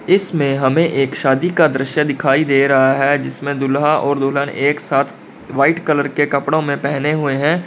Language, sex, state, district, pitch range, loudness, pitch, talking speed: Hindi, male, Uttar Pradesh, Lalitpur, 135-150 Hz, -16 LUFS, 145 Hz, 190 wpm